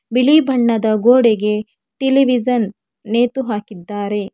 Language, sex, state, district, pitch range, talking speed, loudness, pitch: Kannada, female, Karnataka, Bangalore, 210-250 Hz, 85 wpm, -16 LUFS, 230 Hz